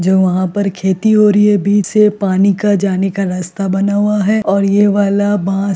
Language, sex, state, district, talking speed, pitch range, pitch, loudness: Hindi, female, Bihar, Kishanganj, 230 wpm, 190-205 Hz, 200 Hz, -13 LUFS